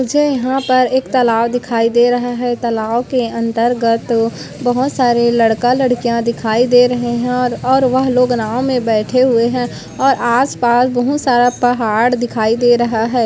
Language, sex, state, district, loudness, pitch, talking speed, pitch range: Hindi, female, Chhattisgarh, Korba, -14 LUFS, 245 Hz, 170 wpm, 235-250 Hz